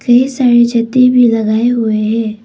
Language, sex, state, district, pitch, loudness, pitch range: Hindi, female, Arunachal Pradesh, Papum Pare, 235 Hz, -11 LUFS, 220-245 Hz